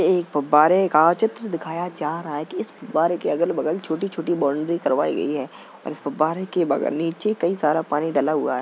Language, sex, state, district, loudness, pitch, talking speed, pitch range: Hindi, male, Uttar Pradesh, Jalaun, -22 LUFS, 165 Hz, 200 wpm, 150-175 Hz